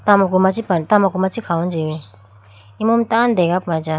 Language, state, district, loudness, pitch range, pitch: Idu Mishmi, Arunachal Pradesh, Lower Dibang Valley, -17 LUFS, 160-205 Hz, 180 Hz